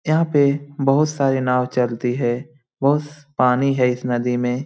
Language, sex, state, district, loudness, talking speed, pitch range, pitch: Hindi, male, Bihar, Lakhisarai, -19 LUFS, 180 wpm, 125-145 Hz, 135 Hz